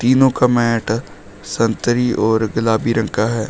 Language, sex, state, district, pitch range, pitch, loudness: Hindi, male, Uttar Pradesh, Shamli, 110-120 Hz, 115 Hz, -17 LUFS